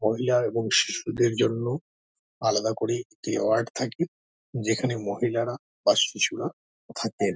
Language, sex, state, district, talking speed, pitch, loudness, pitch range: Bengali, male, West Bengal, Dakshin Dinajpur, 115 wpm, 120 Hz, -26 LUFS, 115-130 Hz